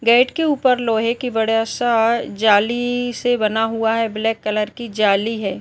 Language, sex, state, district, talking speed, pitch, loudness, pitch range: Hindi, male, Maharashtra, Nagpur, 180 wpm, 225 Hz, -18 LUFS, 220-245 Hz